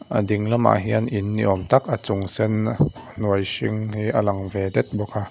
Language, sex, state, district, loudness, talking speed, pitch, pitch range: Mizo, male, Mizoram, Aizawl, -22 LUFS, 225 wpm, 105 Hz, 100-110 Hz